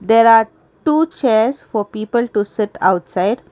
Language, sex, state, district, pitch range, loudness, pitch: English, female, Karnataka, Bangalore, 205-235 Hz, -16 LUFS, 220 Hz